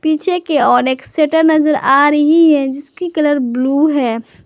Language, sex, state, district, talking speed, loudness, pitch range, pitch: Hindi, male, Jharkhand, Garhwa, 175 wpm, -13 LUFS, 270-315 Hz, 295 Hz